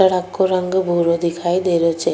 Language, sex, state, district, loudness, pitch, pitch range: Rajasthani, female, Rajasthan, Nagaur, -18 LUFS, 175 Hz, 170-185 Hz